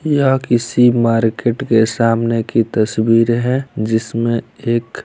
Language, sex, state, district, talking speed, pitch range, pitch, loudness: Hindi, male, Bihar, Saran, 120 wpm, 115-120 Hz, 115 Hz, -15 LUFS